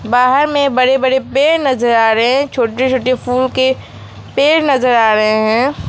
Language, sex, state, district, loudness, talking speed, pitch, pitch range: Hindi, female, West Bengal, Alipurduar, -13 LUFS, 185 wpm, 255 Hz, 240-270 Hz